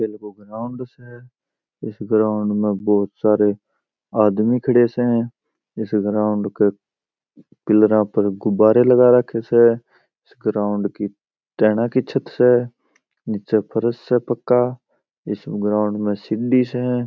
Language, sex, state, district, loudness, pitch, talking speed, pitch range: Marwari, male, Rajasthan, Churu, -19 LUFS, 110 Hz, 125 wpm, 105-120 Hz